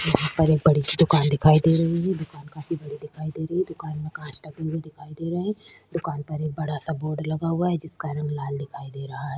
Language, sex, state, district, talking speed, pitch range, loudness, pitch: Hindi, female, Chhattisgarh, Sukma, 270 wpm, 150-165 Hz, -23 LUFS, 155 Hz